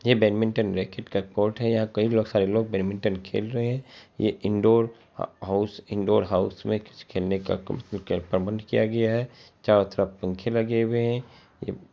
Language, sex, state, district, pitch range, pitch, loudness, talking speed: Hindi, female, Bihar, Araria, 100-115 Hz, 110 Hz, -26 LUFS, 165 wpm